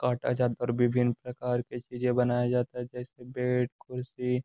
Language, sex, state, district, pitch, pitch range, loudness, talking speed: Hindi, male, Uttar Pradesh, Gorakhpur, 125 Hz, 120-125 Hz, -30 LUFS, 190 wpm